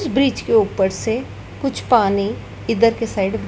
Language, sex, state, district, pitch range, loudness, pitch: Hindi, female, Madhya Pradesh, Dhar, 205-260 Hz, -19 LUFS, 230 Hz